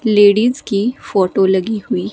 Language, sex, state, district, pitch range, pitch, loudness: Hindi, female, Himachal Pradesh, Shimla, 195-230 Hz, 205 Hz, -15 LUFS